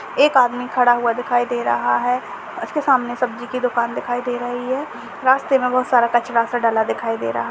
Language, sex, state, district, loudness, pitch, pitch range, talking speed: Hindi, female, Uttarakhand, Uttarkashi, -19 LUFS, 245 Hz, 235-255 Hz, 225 wpm